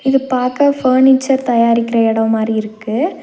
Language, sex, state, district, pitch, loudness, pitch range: Tamil, female, Tamil Nadu, Nilgiris, 250 Hz, -14 LUFS, 225-270 Hz